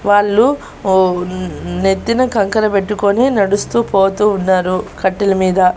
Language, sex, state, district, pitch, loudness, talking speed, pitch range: Telugu, female, Andhra Pradesh, Annamaya, 200 Hz, -14 LUFS, 105 wpm, 190-210 Hz